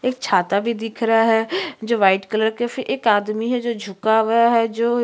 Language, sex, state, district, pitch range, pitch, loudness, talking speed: Hindi, female, Chhattisgarh, Sukma, 220-240 Hz, 225 Hz, -19 LUFS, 225 wpm